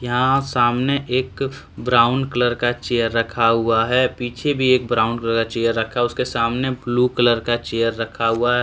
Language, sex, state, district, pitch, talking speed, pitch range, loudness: Hindi, male, Jharkhand, Deoghar, 120 Hz, 195 wpm, 115-125 Hz, -19 LUFS